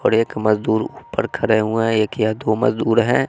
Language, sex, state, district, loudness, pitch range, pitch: Hindi, male, Bihar, West Champaran, -19 LUFS, 110-115 Hz, 110 Hz